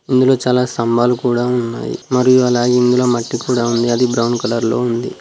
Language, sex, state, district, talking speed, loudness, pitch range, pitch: Telugu, male, Telangana, Mahabubabad, 185 wpm, -15 LUFS, 120-125 Hz, 120 Hz